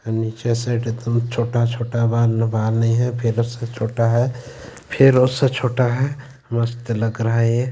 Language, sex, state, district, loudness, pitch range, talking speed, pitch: Hindi, male, Chhattisgarh, Jashpur, -19 LUFS, 115-125 Hz, 140 wpm, 120 Hz